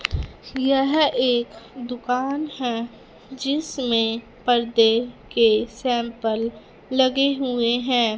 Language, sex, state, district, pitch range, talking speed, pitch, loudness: Hindi, female, Punjab, Fazilka, 230-265 Hz, 80 wpm, 245 Hz, -22 LUFS